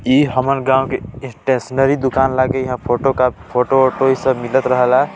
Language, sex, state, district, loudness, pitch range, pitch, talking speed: Hindi, male, Chhattisgarh, Balrampur, -16 LUFS, 125-135 Hz, 130 Hz, 175 wpm